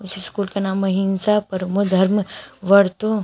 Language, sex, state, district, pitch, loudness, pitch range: Hindi, female, Uttar Pradesh, Shamli, 195 Hz, -19 LUFS, 190-200 Hz